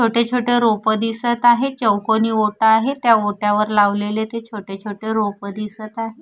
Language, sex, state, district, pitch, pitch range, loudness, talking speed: Marathi, female, Maharashtra, Gondia, 220 Hz, 210-230 Hz, -18 LUFS, 165 wpm